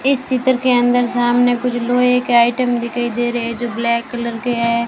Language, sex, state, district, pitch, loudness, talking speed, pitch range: Hindi, female, Rajasthan, Bikaner, 240 Hz, -16 LUFS, 220 wpm, 235-250 Hz